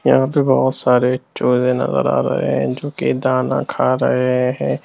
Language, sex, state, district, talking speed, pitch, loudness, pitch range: Hindi, male, Bihar, Lakhisarai, 185 wpm, 130 Hz, -17 LUFS, 125-130 Hz